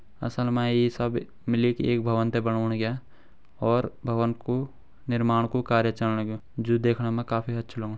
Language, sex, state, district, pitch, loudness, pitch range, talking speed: Garhwali, male, Uttarakhand, Uttarkashi, 115 Hz, -26 LUFS, 115-120 Hz, 190 wpm